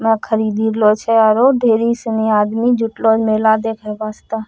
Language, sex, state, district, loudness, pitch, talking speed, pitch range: Angika, female, Bihar, Bhagalpur, -15 LUFS, 220 Hz, 175 wpm, 215-225 Hz